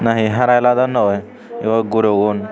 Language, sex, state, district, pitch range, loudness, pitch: Chakma, male, Tripura, Unakoti, 105-125 Hz, -16 LUFS, 110 Hz